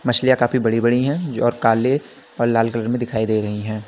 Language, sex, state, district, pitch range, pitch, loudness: Hindi, male, Uttar Pradesh, Lalitpur, 115-125 Hz, 120 Hz, -19 LUFS